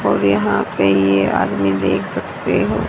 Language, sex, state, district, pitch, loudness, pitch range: Hindi, female, Haryana, Rohtak, 95 Hz, -17 LUFS, 95-100 Hz